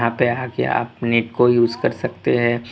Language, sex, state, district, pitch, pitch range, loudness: Hindi, male, Tripura, West Tripura, 120 Hz, 115-120 Hz, -19 LUFS